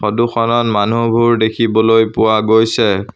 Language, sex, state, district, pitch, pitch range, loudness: Assamese, male, Assam, Sonitpur, 115 Hz, 110-115 Hz, -13 LUFS